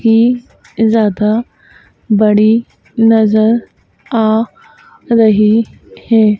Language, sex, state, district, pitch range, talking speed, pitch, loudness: Hindi, female, Madhya Pradesh, Dhar, 215-230 Hz, 65 wpm, 225 Hz, -12 LUFS